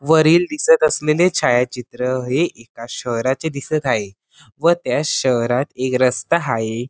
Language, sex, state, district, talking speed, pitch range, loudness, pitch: Marathi, male, Maharashtra, Sindhudurg, 130 wpm, 120-155 Hz, -18 LUFS, 130 Hz